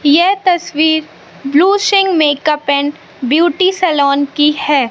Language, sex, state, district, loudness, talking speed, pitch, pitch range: Hindi, female, Madhya Pradesh, Katni, -12 LUFS, 120 wpm, 305 Hz, 290-360 Hz